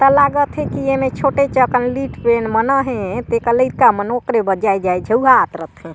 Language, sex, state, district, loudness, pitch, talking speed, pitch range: Chhattisgarhi, female, Chhattisgarh, Sarguja, -16 LUFS, 250 Hz, 200 wpm, 225-270 Hz